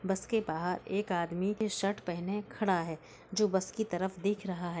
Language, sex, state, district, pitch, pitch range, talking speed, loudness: Hindi, female, Uttar Pradesh, Hamirpur, 190 Hz, 175-205 Hz, 210 wpm, -34 LUFS